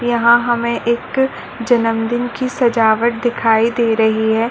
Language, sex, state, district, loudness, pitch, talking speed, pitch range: Hindi, female, Chhattisgarh, Bilaspur, -15 LUFS, 235 Hz, 145 wpm, 225-240 Hz